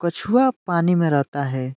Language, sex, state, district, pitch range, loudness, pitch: Hindi, male, Uttar Pradesh, Deoria, 140-180 Hz, -20 LUFS, 170 Hz